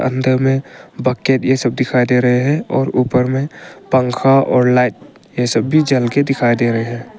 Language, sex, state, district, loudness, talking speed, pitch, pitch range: Hindi, male, Arunachal Pradesh, Longding, -15 LUFS, 200 wpm, 130 Hz, 125-135 Hz